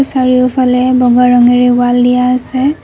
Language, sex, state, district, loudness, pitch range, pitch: Assamese, female, Assam, Kamrup Metropolitan, -9 LUFS, 245-255 Hz, 250 Hz